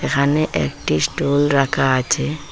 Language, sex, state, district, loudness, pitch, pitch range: Bengali, female, Assam, Hailakandi, -18 LUFS, 140 Hz, 120-145 Hz